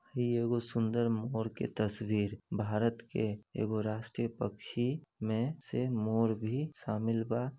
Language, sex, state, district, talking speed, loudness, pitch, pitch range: Bhojpuri, male, Uttar Pradesh, Deoria, 140 wpm, -35 LUFS, 115 Hz, 110-120 Hz